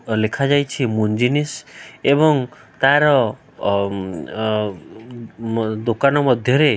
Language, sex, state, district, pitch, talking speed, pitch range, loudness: Odia, male, Odisha, Khordha, 125 Hz, 80 wpm, 110-140 Hz, -18 LUFS